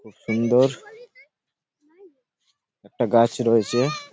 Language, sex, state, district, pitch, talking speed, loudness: Bengali, male, West Bengal, Purulia, 135 Hz, 85 wpm, -21 LUFS